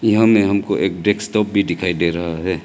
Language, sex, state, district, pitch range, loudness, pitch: Hindi, male, Arunachal Pradesh, Lower Dibang Valley, 85-105 Hz, -17 LUFS, 100 Hz